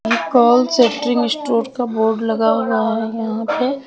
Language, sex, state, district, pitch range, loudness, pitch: Hindi, female, Punjab, Kapurthala, 225-245 Hz, -17 LUFS, 230 Hz